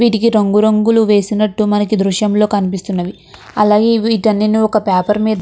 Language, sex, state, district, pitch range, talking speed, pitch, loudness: Telugu, female, Andhra Pradesh, Krishna, 205-220 Hz, 145 wpm, 210 Hz, -13 LUFS